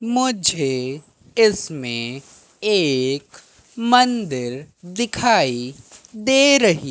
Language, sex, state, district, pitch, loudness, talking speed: Hindi, male, Madhya Pradesh, Katni, 170 Hz, -19 LUFS, 60 wpm